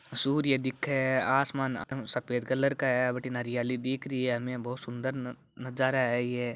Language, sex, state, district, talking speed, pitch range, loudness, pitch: Marwari, male, Rajasthan, Churu, 165 wpm, 125-135 Hz, -30 LUFS, 130 Hz